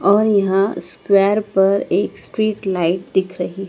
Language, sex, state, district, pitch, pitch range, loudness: Hindi, female, Madhya Pradesh, Dhar, 195 Hz, 190-205 Hz, -17 LUFS